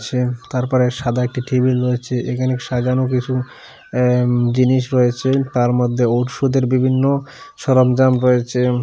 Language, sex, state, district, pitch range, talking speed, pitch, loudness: Bengali, male, Assam, Hailakandi, 125-130 Hz, 120 wpm, 125 Hz, -17 LUFS